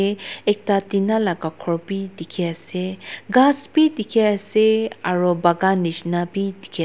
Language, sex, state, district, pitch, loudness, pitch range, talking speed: Nagamese, female, Nagaland, Dimapur, 195 Hz, -20 LUFS, 175-215 Hz, 130 wpm